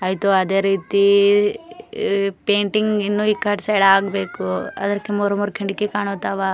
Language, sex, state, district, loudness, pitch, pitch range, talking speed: Kannada, female, Karnataka, Gulbarga, -19 LUFS, 200 Hz, 195-205 Hz, 110 wpm